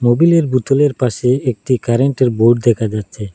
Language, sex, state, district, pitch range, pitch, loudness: Bengali, male, Assam, Hailakandi, 115-135 Hz, 125 Hz, -14 LUFS